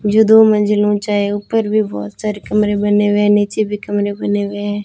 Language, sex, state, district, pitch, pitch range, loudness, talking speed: Hindi, female, Rajasthan, Bikaner, 205 Hz, 205-210 Hz, -15 LUFS, 235 wpm